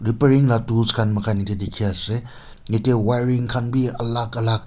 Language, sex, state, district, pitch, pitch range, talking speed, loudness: Nagamese, male, Nagaland, Kohima, 115 Hz, 110-120 Hz, 180 wpm, -20 LUFS